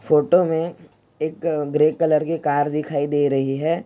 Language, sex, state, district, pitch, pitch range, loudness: Hindi, male, Jharkhand, Jamtara, 155 Hz, 145-165 Hz, -20 LUFS